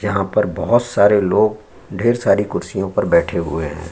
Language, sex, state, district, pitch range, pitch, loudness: Hindi, male, Uttar Pradesh, Jyotiba Phule Nagar, 85-110 Hz, 100 Hz, -17 LUFS